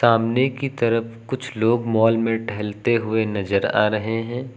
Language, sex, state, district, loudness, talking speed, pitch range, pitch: Hindi, male, Uttar Pradesh, Lucknow, -21 LUFS, 170 wpm, 110-120 Hz, 115 Hz